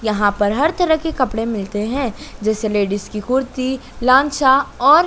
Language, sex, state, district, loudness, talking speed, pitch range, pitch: Hindi, female, Madhya Pradesh, Dhar, -18 LUFS, 165 wpm, 210-275 Hz, 255 Hz